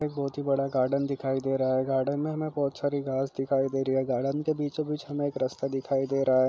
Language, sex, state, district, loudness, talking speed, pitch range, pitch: Hindi, male, Chhattisgarh, Jashpur, -29 LUFS, 270 wpm, 135-145 Hz, 135 Hz